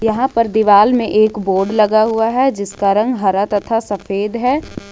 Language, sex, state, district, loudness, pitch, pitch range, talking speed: Hindi, female, Jharkhand, Ranchi, -15 LUFS, 215 Hz, 205-230 Hz, 185 wpm